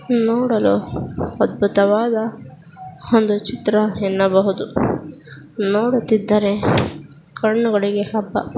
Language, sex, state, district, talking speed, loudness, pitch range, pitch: Kannada, female, Karnataka, Dakshina Kannada, 55 wpm, -18 LUFS, 195-225 Hz, 210 Hz